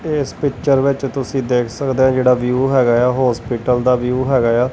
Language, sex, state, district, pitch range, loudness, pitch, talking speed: Punjabi, male, Punjab, Kapurthala, 125-135 Hz, -16 LUFS, 130 Hz, 230 wpm